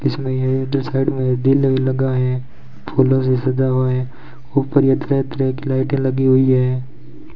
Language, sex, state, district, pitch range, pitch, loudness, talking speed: Hindi, male, Rajasthan, Bikaner, 130-135 Hz, 130 Hz, -18 LUFS, 170 wpm